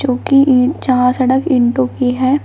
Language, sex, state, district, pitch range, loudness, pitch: Hindi, female, Uttar Pradesh, Shamli, 250-270 Hz, -13 LUFS, 255 Hz